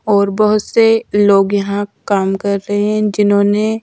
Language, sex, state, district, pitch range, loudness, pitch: Hindi, female, Madhya Pradesh, Dhar, 200-215 Hz, -14 LUFS, 205 Hz